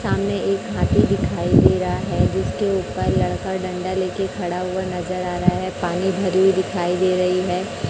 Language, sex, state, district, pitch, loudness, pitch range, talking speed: Hindi, male, Chhattisgarh, Raipur, 185 Hz, -20 LUFS, 180-190 Hz, 200 wpm